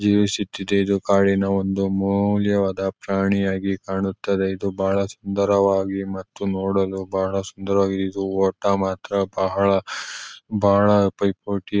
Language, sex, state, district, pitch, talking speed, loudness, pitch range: Kannada, male, Karnataka, Shimoga, 100 Hz, 100 wpm, -21 LUFS, 95-100 Hz